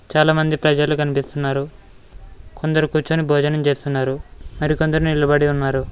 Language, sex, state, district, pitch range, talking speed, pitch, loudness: Telugu, male, Telangana, Mahabubabad, 135-155 Hz, 100 wpm, 145 Hz, -19 LUFS